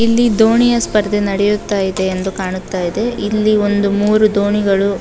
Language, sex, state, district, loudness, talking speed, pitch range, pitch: Kannada, female, Karnataka, Dakshina Kannada, -15 LUFS, 155 wpm, 195-215 Hz, 205 Hz